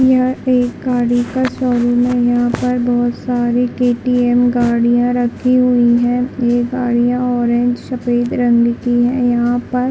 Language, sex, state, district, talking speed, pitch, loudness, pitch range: Hindi, female, Chhattisgarh, Bilaspur, 150 wpm, 245 Hz, -15 LUFS, 240-250 Hz